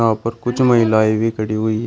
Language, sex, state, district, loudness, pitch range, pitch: Hindi, male, Uttar Pradesh, Shamli, -17 LUFS, 110-115 Hz, 110 Hz